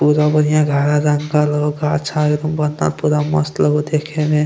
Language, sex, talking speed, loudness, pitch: Angika, male, 150 wpm, -16 LUFS, 150 Hz